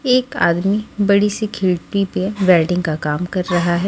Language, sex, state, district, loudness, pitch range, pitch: Hindi, female, Maharashtra, Washim, -17 LUFS, 175-205 Hz, 185 Hz